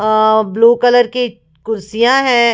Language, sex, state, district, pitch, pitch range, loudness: Hindi, female, Bihar, Patna, 230 Hz, 215-245 Hz, -13 LUFS